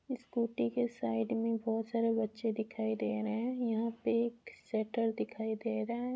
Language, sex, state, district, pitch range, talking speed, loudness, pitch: Hindi, female, Rajasthan, Churu, 215-235 Hz, 185 wpm, -35 LUFS, 225 Hz